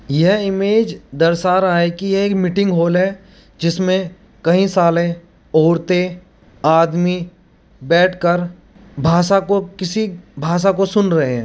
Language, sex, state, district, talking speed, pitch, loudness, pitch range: Hindi, male, Uttar Pradesh, Muzaffarnagar, 140 wpm, 180 Hz, -16 LUFS, 170-195 Hz